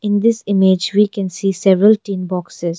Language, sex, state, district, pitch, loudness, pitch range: English, female, Arunachal Pradesh, Longding, 195 Hz, -15 LUFS, 185-205 Hz